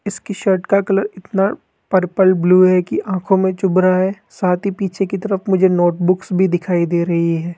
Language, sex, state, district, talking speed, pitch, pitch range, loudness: Hindi, male, Rajasthan, Jaipur, 215 wpm, 185 Hz, 180-195 Hz, -16 LUFS